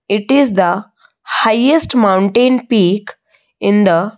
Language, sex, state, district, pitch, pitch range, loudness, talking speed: English, female, Odisha, Malkangiri, 215 Hz, 195-250 Hz, -13 LUFS, 130 wpm